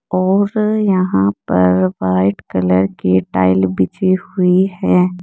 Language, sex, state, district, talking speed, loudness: Hindi, female, Uttar Pradesh, Saharanpur, 115 wpm, -15 LUFS